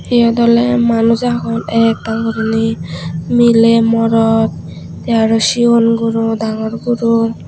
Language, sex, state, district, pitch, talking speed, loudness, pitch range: Chakma, female, Tripura, Unakoti, 225 Hz, 110 wpm, -13 LUFS, 225-235 Hz